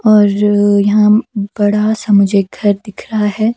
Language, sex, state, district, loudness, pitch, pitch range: Hindi, female, Himachal Pradesh, Shimla, -12 LUFS, 205 Hz, 205-215 Hz